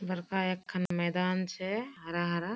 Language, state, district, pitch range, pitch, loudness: Surjapuri, Bihar, Kishanganj, 175-190 Hz, 185 Hz, -33 LUFS